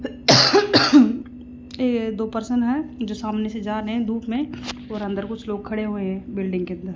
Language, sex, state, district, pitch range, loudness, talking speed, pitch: Hindi, female, Rajasthan, Jaipur, 210-250 Hz, -21 LUFS, 190 wpm, 225 Hz